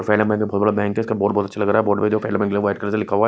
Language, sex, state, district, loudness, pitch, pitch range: Hindi, male, Odisha, Nuapada, -20 LUFS, 105 Hz, 100-105 Hz